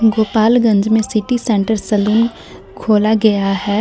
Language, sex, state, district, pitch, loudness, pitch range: Hindi, female, Jharkhand, Garhwa, 220 Hz, -14 LUFS, 210-225 Hz